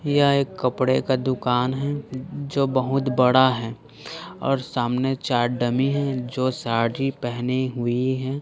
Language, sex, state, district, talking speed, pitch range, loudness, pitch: Hindi, male, Chhattisgarh, Raipur, 145 wpm, 125-135 Hz, -23 LUFS, 130 Hz